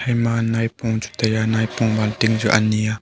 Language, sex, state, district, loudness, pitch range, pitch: Wancho, male, Arunachal Pradesh, Longding, -20 LUFS, 110-115 Hz, 110 Hz